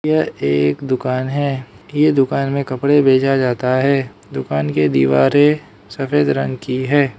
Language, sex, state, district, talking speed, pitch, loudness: Hindi, male, Arunachal Pradesh, Lower Dibang Valley, 150 wpm, 130 Hz, -16 LUFS